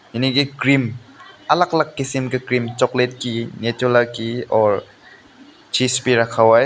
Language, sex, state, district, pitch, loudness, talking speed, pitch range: Hindi, male, Meghalaya, West Garo Hills, 125 Hz, -19 LUFS, 160 wpm, 120-130 Hz